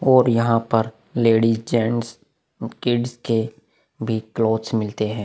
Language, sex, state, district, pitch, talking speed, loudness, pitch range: Hindi, male, Bihar, Vaishali, 115 Hz, 125 wpm, -21 LUFS, 110-115 Hz